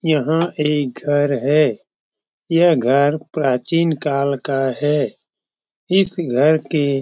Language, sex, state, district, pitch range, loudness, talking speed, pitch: Hindi, male, Bihar, Jamui, 140-160 Hz, -18 LUFS, 120 wpm, 150 Hz